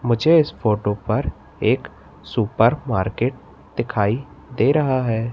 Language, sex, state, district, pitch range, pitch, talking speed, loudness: Hindi, male, Madhya Pradesh, Katni, 105-130 Hz, 115 Hz, 125 wpm, -20 LUFS